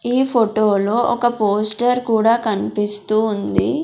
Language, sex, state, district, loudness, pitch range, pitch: Telugu, female, Andhra Pradesh, Sri Satya Sai, -16 LUFS, 215-240 Hz, 225 Hz